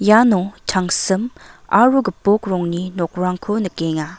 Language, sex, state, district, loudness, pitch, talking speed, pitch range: Garo, female, Meghalaya, West Garo Hills, -18 LUFS, 190 Hz, 100 wpm, 180-215 Hz